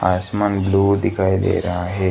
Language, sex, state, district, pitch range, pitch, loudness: Hindi, male, Gujarat, Gandhinagar, 90-100 Hz, 95 Hz, -19 LUFS